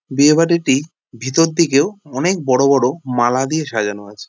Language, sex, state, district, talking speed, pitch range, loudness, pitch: Bengali, male, West Bengal, Jalpaiguri, 140 wpm, 125-165 Hz, -16 LUFS, 140 Hz